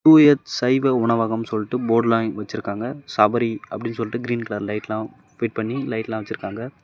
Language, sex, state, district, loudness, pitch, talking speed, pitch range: Tamil, male, Tamil Nadu, Namakkal, -22 LUFS, 115 Hz, 150 wpm, 110-120 Hz